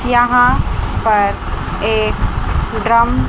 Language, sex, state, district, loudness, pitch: Hindi, female, Chandigarh, Chandigarh, -15 LUFS, 215 Hz